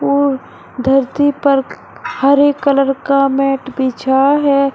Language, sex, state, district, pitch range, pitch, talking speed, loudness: Hindi, male, Uttar Pradesh, Shamli, 265-280 Hz, 275 Hz, 115 wpm, -14 LUFS